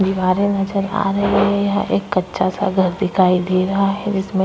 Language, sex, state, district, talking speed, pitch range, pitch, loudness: Hindi, female, Uttar Pradesh, Budaun, 200 wpm, 185-200 Hz, 195 Hz, -18 LUFS